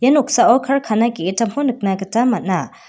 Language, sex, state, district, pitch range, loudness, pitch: Garo, female, Meghalaya, West Garo Hills, 195-265 Hz, -17 LUFS, 235 Hz